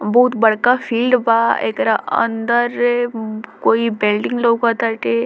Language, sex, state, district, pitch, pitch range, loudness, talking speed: Bhojpuri, female, Bihar, Muzaffarpur, 230 Hz, 215-240 Hz, -16 LUFS, 105 wpm